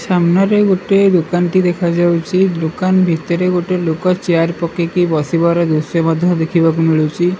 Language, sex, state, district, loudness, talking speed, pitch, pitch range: Odia, male, Odisha, Malkangiri, -14 LUFS, 130 wpm, 175 Hz, 165-185 Hz